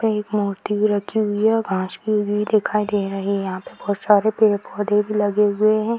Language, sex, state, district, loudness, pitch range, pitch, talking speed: Hindi, female, Bihar, Darbhanga, -20 LUFS, 205-215 Hz, 210 Hz, 260 wpm